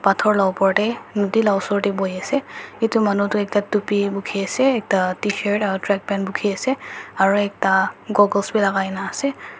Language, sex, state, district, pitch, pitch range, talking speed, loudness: Nagamese, female, Nagaland, Dimapur, 200 Hz, 195-210 Hz, 170 wpm, -20 LUFS